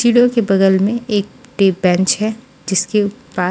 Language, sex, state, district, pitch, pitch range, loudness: Hindi, female, Maharashtra, Washim, 200 Hz, 190-225 Hz, -15 LUFS